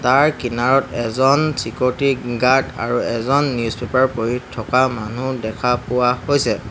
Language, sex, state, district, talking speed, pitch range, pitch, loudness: Assamese, male, Assam, Hailakandi, 135 wpm, 120-135 Hz, 125 Hz, -18 LUFS